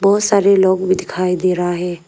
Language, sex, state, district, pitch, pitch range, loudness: Hindi, female, Arunachal Pradesh, Lower Dibang Valley, 185 Hz, 180-195 Hz, -15 LUFS